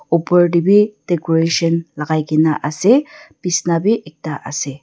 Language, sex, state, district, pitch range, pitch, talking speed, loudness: Nagamese, female, Nagaland, Dimapur, 155-195 Hz, 170 Hz, 135 wpm, -16 LUFS